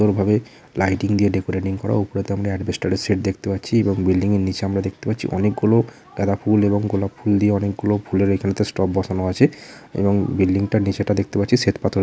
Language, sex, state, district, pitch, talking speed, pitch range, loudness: Bengali, male, West Bengal, Purulia, 100 Hz, 215 wpm, 95-105 Hz, -20 LUFS